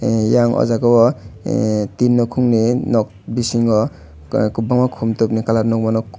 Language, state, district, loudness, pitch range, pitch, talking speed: Kokborok, Tripura, West Tripura, -17 LUFS, 110-120 Hz, 115 Hz, 145 wpm